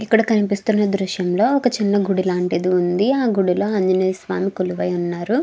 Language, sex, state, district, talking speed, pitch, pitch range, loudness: Telugu, female, Andhra Pradesh, Krishna, 175 wpm, 195 Hz, 185-215 Hz, -19 LUFS